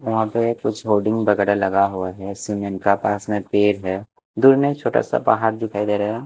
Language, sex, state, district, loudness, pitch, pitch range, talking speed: Hindi, male, Bihar, West Champaran, -20 LUFS, 105 Hz, 100-110 Hz, 220 wpm